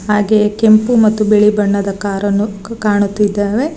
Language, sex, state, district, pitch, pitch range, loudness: Kannada, female, Karnataka, Bangalore, 210 Hz, 205-215 Hz, -13 LUFS